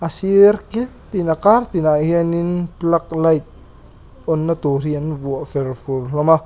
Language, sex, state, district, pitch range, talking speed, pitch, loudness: Mizo, male, Mizoram, Aizawl, 150-175 Hz, 205 wpm, 165 Hz, -18 LUFS